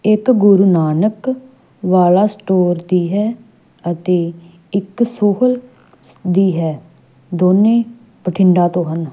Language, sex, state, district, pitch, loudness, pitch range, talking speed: Punjabi, female, Punjab, Fazilka, 190 Hz, -15 LUFS, 175-215 Hz, 105 wpm